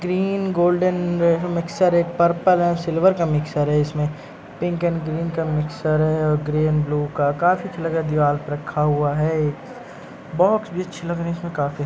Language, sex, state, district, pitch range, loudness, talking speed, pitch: Hindi, male, Uttar Pradesh, Jyotiba Phule Nagar, 150-175 Hz, -21 LUFS, 200 wpm, 165 Hz